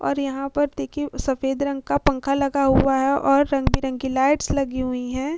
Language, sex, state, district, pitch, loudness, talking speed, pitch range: Hindi, female, Uttar Pradesh, Hamirpur, 275 Hz, -22 LUFS, 190 wpm, 265-280 Hz